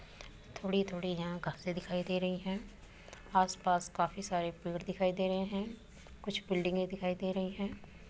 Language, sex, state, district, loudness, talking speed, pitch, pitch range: Hindi, female, Uttar Pradesh, Muzaffarnagar, -36 LUFS, 165 wpm, 185 Hz, 180-190 Hz